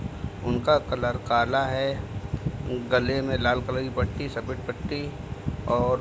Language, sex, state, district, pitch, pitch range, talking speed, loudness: Hindi, male, Uttar Pradesh, Deoria, 125 Hz, 120-130 Hz, 140 wpm, -27 LUFS